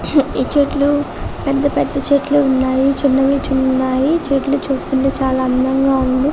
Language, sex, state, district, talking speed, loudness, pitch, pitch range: Telugu, female, Telangana, Karimnagar, 125 wpm, -16 LUFS, 275 Hz, 265-285 Hz